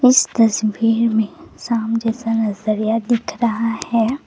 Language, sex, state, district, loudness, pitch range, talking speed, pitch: Hindi, female, Assam, Kamrup Metropolitan, -18 LUFS, 220-235 Hz, 125 wpm, 225 Hz